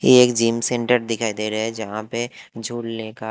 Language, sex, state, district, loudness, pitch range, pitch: Hindi, male, Haryana, Jhajjar, -21 LUFS, 110-120 Hz, 115 Hz